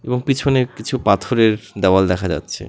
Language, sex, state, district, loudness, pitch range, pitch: Bengali, male, West Bengal, Alipurduar, -17 LUFS, 95-125 Hz, 105 Hz